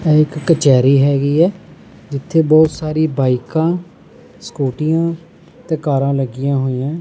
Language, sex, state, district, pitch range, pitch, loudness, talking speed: Punjabi, male, Punjab, Pathankot, 140-165 Hz, 155 Hz, -15 LUFS, 110 wpm